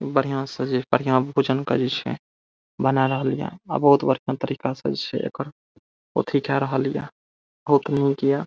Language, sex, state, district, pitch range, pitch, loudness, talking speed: Maithili, male, Bihar, Saharsa, 130-140 Hz, 135 Hz, -23 LUFS, 140 wpm